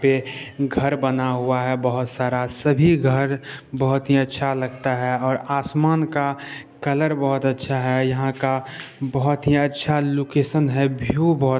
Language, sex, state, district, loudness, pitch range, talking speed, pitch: Hindi, male, Bihar, Saharsa, -21 LUFS, 130-145 Hz, 155 wpm, 135 Hz